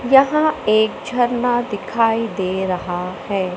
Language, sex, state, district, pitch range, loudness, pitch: Hindi, male, Madhya Pradesh, Katni, 185-245 Hz, -19 LUFS, 220 Hz